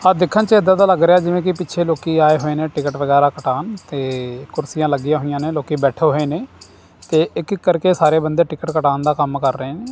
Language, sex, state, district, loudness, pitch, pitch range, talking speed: Punjabi, male, Punjab, Kapurthala, -17 LUFS, 155 Hz, 140-175 Hz, 235 wpm